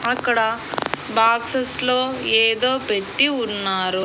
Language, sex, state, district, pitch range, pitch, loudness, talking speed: Telugu, female, Andhra Pradesh, Annamaya, 220-255 Hz, 230 Hz, -19 LUFS, 90 wpm